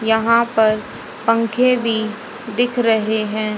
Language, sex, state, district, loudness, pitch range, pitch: Hindi, female, Haryana, Jhajjar, -17 LUFS, 220-235 Hz, 225 Hz